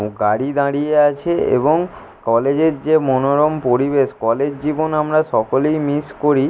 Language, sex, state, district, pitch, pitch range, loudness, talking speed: Bengali, male, West Bengal, Jalpaiguri, 145 Hz, 135-155 Hz, -17 LUFS, 130 wpm